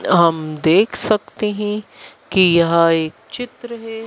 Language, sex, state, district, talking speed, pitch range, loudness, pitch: Hindi, female, Madhya Pradesh, Dhar, 130 wpm, 170-225 Hz, -17 LUFS, 205 Hz